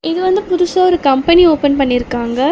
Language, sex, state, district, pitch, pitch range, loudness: Tamil, female, Tamil Nadu, Chennai, 325 Hz, 270-360 Hz, -13 LUFS